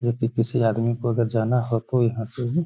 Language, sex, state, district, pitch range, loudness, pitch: Hindi, male, Bihar, Gaya, 115-120 Hz, -23 LUFS, 120 Hz